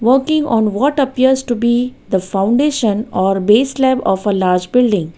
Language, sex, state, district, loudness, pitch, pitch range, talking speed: English, female, Gujarat, Valsad, -15 LUFS, 235 Hz, 200-260 Hz, 175 wpm